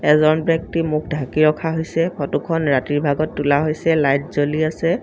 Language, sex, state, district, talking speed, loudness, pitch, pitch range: Assamese, female, Assam, Sonitpur, 165 wpm, -19 LUFS, 155 Hz, 145-165 Hz